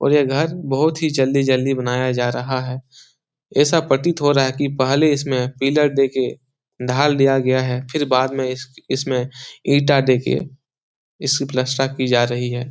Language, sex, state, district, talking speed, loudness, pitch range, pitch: Hindi, male, Bihar, Jahanabad, 175 wpm, -19 LUFS, 130-140 Hz, 135 Hz